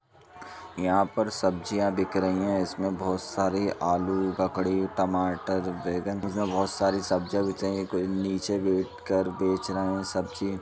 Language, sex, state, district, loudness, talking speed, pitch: Hindi, male, Uttar Pradesh, Jalaun, -28 LUFS, 160 wpm, 95 Hz